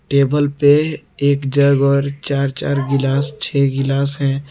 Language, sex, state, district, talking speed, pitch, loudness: Hindi, male, Jharkhand, Garhwa, 145 wpm, 140 Hz, -16 LUFS